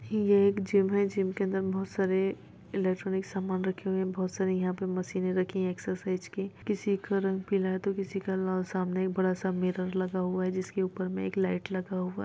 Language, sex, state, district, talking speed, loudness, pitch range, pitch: Hindi, female, Chhattisgarh, Rajnandgaon, 245 wpm, -30 LUFS, 185-195 Hz, 190 Hz